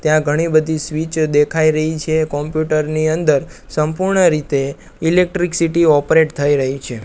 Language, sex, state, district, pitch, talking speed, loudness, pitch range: Gujarati, male, Gujarat, Gandhinagar, 155 Hz, 155 wpm, -16 LUFS, 150-160 Hz